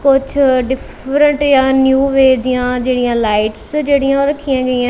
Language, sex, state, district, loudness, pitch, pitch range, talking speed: Punjabi, female, Punjab, Kapurthala, -13 LUFS, 265 Hz, 255-275 Hz, 135 wpm